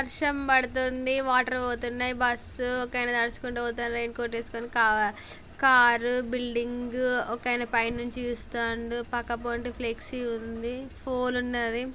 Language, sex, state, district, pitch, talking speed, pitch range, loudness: Telugu, female, Telangana, Karimnagar, 245 Hz, 125 wpm, 235-250 Hz, -27 LUFS